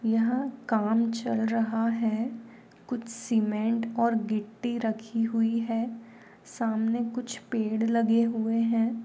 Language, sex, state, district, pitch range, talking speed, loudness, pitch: Hindi, female, Goa, North and South Goa, 225-235 Hz, 120 wpm, -28 LUFS, 230 Hz